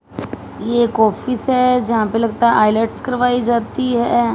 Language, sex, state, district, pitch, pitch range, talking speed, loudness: Hindi, female, Punjab, Fazilka, 235 Hz, 225-245 Hz, 150 wpm, -16 LUFS